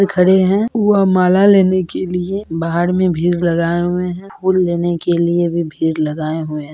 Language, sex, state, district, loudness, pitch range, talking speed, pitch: Hindi, female, Bihar, Purnia, -15 LUFS, 170-185 Hz, 195 wpm, 175 Hz